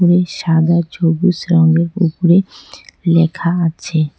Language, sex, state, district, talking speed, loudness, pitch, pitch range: Bengali, female, West Bengal, Cooch Behar, 100 wpm, -14 LUFS, 170 Hz, 165-175 Hz